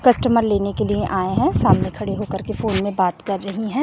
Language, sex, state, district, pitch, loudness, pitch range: Hindi, female, Chhattisgarh, Raipur, 205 Hz, -20 LUFS, 195-230 Hz